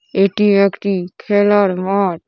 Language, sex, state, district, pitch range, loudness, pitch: Bengali, female, West Bengal, Paschim Medinipur, 190-205 Hz, -15 LUFS, 200 Hz